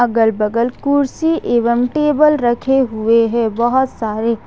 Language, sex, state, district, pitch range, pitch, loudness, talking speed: Hindi, female, Jharkhand, Ranchi, 230-270 Hz, 240 Hz, -15 LUFS, 135 wpm